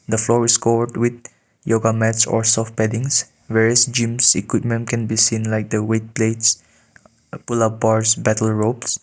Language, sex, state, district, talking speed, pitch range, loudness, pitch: English, male, Nagaland, Kohima, 165 wpm, 110-115 Hz, -17 LUFS, 115 Hz